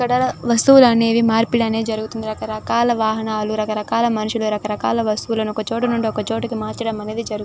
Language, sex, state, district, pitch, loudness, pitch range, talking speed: Telugu, female, Andhra Pradesh, Chittoor, 225 Hz, -18 LUFS, 215-230 Hz, 145 wpm